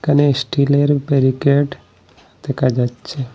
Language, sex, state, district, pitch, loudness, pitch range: Bengali, male, Assam, Hailakandi, 135 Hz, -17 LUFS, 125-145 Hz